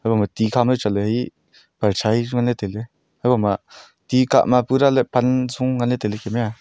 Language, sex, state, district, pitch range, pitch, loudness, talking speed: Wancho, male, Arunachal Pradesh, Longding, 105-125 Hz, 120 Hz, -20 LUFS, 190 wpm